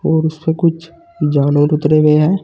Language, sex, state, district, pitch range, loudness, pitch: Hindi, male, Uttar Pradesh, Saharanpur, 150-165 Hz, -14 LUFS, 160 Hz